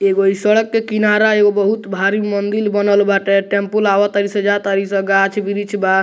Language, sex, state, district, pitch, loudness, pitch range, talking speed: Bhojpuri, male, Bihar, Muzaffarpur, 200 Hz, -15 LUFS, 195-210 Hz, 190 wpm